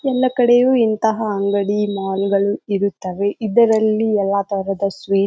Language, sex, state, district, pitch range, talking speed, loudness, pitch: Kannada, female, Karnataka, Bijapur, 200-220 Hz, 125 wpm, -18 LUFS, 205 Hz